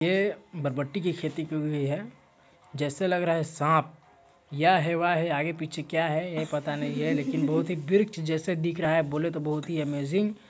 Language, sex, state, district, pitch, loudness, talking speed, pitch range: Hindi, male, Chhattisgarh, Sarguja, 160 Hz, -28 LUFS, 215 wpm, 150-170 Hz